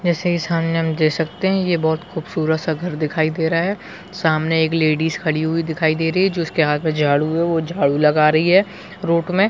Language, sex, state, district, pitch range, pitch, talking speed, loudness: Hindi, male, Chhattisgarh, Bilaspur, 155-175 Hz, 160 Hz, 245 wpm, -18 LUFS